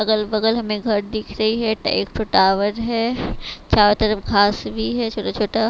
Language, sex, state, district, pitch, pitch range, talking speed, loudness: Hindi, female, Maharashtra, Gondia, 215 Hz, 210-225 Hz, 200 wpm, -19 LUFS